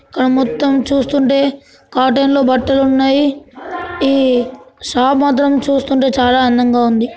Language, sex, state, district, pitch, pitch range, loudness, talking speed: Telugu, female, Telangana, Nalgonda, 270 Hz, 255-275 Hz, -13 LUFS, 115 wpm